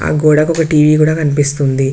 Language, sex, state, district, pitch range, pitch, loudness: Telugu, female, Telangana, Mahabubabad, 145-155 Hz, 150 Hz, -12 LUFS